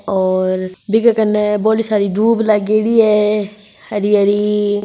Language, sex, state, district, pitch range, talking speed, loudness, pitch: Hindi, female, Rajasthan, Nagaur, 205-215 Hz, 125 wpm, -15 LUFS, 210 Hz